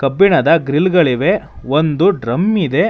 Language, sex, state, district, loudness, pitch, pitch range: Kannada, male, Karnataka, Bangalore, -14 LUFS, 165 Hz, 140-195 Hz